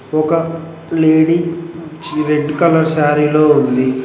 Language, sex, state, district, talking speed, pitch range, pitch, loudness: Telugu, male, Telangana, Mahabubabad, 105 wpm, 150-165 Hz, 155 Hz, -14 LUFS